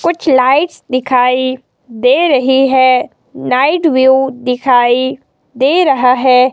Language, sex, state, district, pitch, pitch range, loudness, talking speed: Hindi, female, Himachal Pradesh, Shimla, 260 Hz, 250-270 Hz, -11 LUFS, 110 wpm